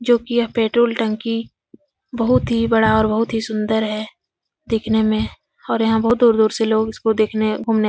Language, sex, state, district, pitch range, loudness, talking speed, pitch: Hindi, female, Uttar Pradesh, Etah, 220-230 Hz, -18 LUFS, 190 wpm, 225 Hz